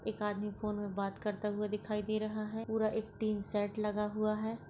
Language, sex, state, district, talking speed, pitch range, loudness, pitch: Hindi, female, Maharashtra, Solapur, 230 wpm, 210-215 Hz, -37 LUFS, 210 Hz